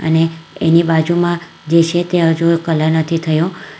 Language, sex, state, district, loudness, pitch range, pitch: Gujarati, female, Gujarat, Valsad, -15 LUFS, 160-170 Hz, 165 Hz